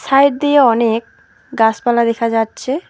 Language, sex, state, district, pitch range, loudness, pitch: Bengali, female, West Bengal, Alipurduar, 230-275 Hz, -14 LUFS, 235 Hz